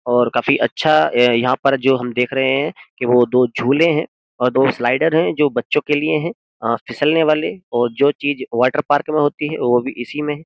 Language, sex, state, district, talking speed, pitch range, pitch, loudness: Hindi, male, Uttar Pradesh, Jyotiba Phule Nagar, 230 wpm, 125-150 Hz, 135 Hz, -17 LUFS